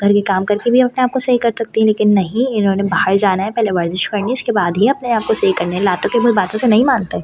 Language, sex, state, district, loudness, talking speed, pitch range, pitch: Hindi, female, Delhi, New Delhi, -15 LUFS, 305 wpm, 195-240 Hz, 215 Hz